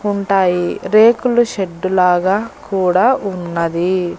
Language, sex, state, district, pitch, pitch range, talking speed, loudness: Telugu, female, Andhra Pradesh, Annamaya, 190 Hz, 180-205 Hz, 85 wpm, -15 LUFS